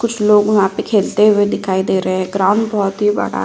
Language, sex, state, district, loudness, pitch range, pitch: Hindi, female, Uttar Pradesh, Hamirpur, -15 LUFS, 190-210 Hz, 205 Hz